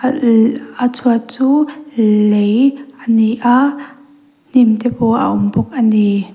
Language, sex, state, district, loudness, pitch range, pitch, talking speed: Mizo, female, Mizoram, Aizawl, -14 LUFS, 220-275 Hz, 245 Hz, 150 wpm